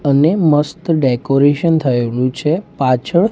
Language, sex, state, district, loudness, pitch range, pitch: Gujarati, male, Gujarat, Gandhinagar, -15 LUFS, 130-165 Hz, 145 Hz